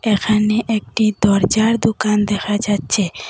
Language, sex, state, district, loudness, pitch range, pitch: Bengali, female, Assam, Hailakandi, -17 LUFS, 205-220 Hz, 210 Hz